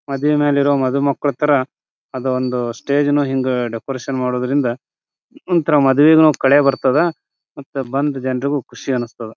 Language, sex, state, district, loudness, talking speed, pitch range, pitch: Kannada, male, Karnataka, Bijapur, -17 LUFS, 115 wpm, 130-145 Hz, 135 Hz